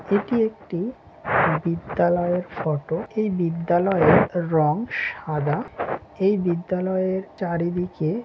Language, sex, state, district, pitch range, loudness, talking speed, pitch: Bengali, male, West Bengal, Dakshin Dinajpur, 170-195 Hz, -23 LUFS, 80 wpm, 175 Hz